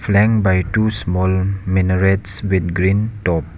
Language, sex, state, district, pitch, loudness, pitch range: English, male, Arunachal Pradesh, Lower Dibang Valley, 95 Hz, -17 LUFS, 95-105 Hz